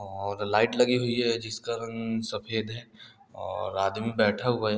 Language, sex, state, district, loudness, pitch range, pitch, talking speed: Hindi, male, Uttar Pradesh, Hamirpur, -28 LUFS, 105-115 Hz, 115 Hz, 175 wpm